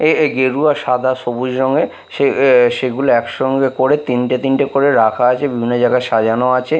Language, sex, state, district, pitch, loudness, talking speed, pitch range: Bengali, male, Bihar, Katihar, 130 Hz, -15 LUFS, 185 wpm, 125-135 Hz